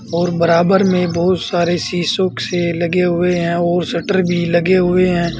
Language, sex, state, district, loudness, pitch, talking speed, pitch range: Hindi, male, Uttar Pradesh, Saharanpur, -15 LUFS, 175 Hz, 180 wpm, 170-180 Hz